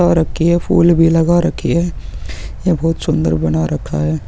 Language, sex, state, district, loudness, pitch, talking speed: Hindi, male, Uttarakhand, Tehri Garhwal, -15 LUFS, 165 Hz, 195 wpm